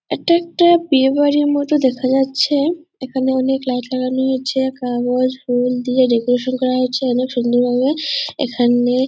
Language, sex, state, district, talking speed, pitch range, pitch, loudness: Bengali, female, West Bengal, Purulia, 165 wpm, 250-280 Hz, 260 Hz, -17 LUFS